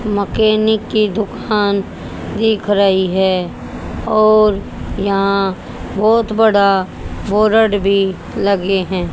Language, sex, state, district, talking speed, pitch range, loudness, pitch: Hindi, female, Haryana, Charkhi Dadri, 90 wpm, 195-215 Hz, -15 LUFS, 205 Hz